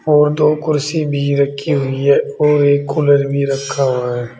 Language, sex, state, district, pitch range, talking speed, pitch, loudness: Hindi, male, Uttar Pradesh, Saharanpur, 140-150 Hz, 190 wpm, 140 Hz, -15 LUFS